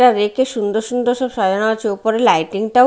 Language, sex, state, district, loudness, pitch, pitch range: Bengali, female, Odisha, Malkangiri, -17 LUFS, 220 Hz, 210-245 Hz